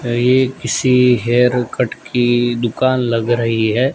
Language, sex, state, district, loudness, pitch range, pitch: Hindi, male, Gujarat, Gandhinagar, -15 LUFS, 120-125 Hz, 120 Hz